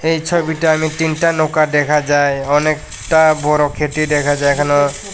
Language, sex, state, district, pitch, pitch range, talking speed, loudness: Bengali, male, Tripura, West Tripura, 150 Hz, 145-160 Hz, 150 wpm, -15 LUFS